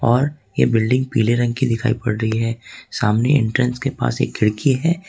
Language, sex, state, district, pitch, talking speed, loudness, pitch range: Hindi, male, Jharkhand, Ranchi, 120 Hz, 200 wpm, -19 LUFS, 110-130 Hz